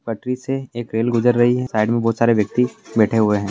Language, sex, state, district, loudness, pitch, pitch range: Hindi, male, Bihar, Purnia, -19 LUFS, 115 Hz, 110-120 Hz